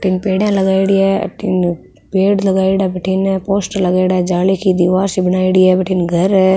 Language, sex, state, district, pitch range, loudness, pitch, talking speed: Rajasthani, female, Rajasthan, Nagaur, 185-195 Hz, -14 LUFS, 190 Hz, 175 wpm